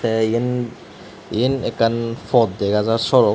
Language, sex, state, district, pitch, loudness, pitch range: Chakma, male, Tripura, Dhalai, 115 Hz, -19 LUFS, 110-120 Hz